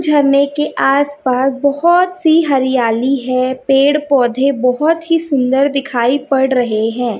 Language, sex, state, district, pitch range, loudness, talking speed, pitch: Hindi, female, Chhattisgarh, Raipur, 255-290 Hz, -14 LUFS, 140 wpm, 275 Hz